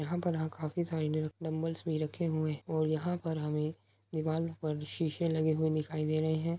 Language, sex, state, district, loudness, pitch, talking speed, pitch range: Hindi, male, Uttar Pradesh, Muzaffarnagar, -34 LUFS, 155 Hz, 210 wpm, 155-165 Hz